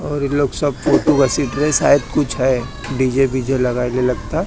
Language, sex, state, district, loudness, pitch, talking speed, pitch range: Hindi, male, Maharashtra, Mumbai Suburban, -17 LUFS, 135 Hz, 215 wpm, 125-145 Hz